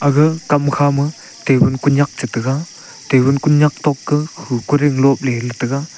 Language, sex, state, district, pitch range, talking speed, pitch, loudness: Wancho, male, Arunachal Pradesh, Longding, 135-150 Hz, 150 wpm, 145 Hz, -16 LUFS